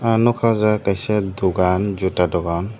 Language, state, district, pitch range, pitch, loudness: Kokborok, Tripura, Dhalai, 90-110 Hz, 100 Hz, -19 LUFS